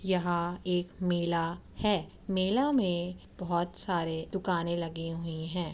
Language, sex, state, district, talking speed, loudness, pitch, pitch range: Hindi, female, Uttar Pradesh, Muzaffarnagar, 145 wpm, -31 LUFS, 175 Hz, 170-185 Hz